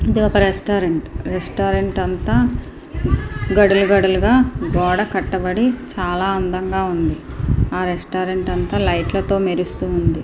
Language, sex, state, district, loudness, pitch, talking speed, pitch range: Telugu, female, Andhra Pradesh, Srikakulam, -18 LUFS, 185 Hz, 105 wpm, 170-195 Hz